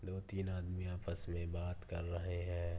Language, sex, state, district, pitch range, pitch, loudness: Hindi, female, Maharashtra, Pune, 85-90 Hz, 90 Hz, -43 LUFS